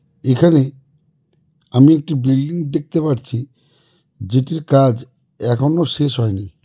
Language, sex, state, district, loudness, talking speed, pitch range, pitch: Bengali, male, West Bengal, Cooch Behar, -16 LUFS, 100 wpm, 130-155 Hz, 145 Hz